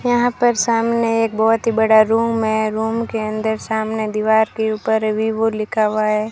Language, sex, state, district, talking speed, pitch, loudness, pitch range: Hindi, female, Rajasthan, Bikaner, 190 wpm, 220 Hz, -17 LUFS, 220-225 Hz